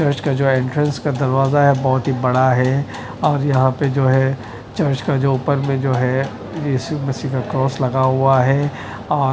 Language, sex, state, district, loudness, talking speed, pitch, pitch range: Hindi, male, Odisha, Nuapada, -18 LUFS, 205 wpm, 135 Hz, 130-140 Hz